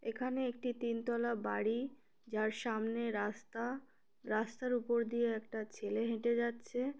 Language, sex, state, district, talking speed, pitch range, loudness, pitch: Bengali, female, West Bengal, Kolkata, 130 wpm, 225-245 Hz, -38 LUFS, 235 Hz